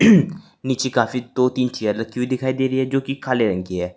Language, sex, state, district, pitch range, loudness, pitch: Hindi, male, Uttar Pradesh, Saharanpur, 120-130 Hz, -21 LUFS, 130 Hz